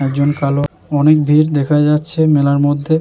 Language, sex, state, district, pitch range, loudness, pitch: Bengali, male, West Bengal, Jalpaiguri, 145-155 Hz, -14 LUFS, 145 Hz